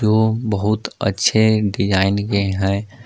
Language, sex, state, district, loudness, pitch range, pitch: Hindi, male, Jharkhand, Palamu, -18 LUFS, 100-110 Hz, 105 Hz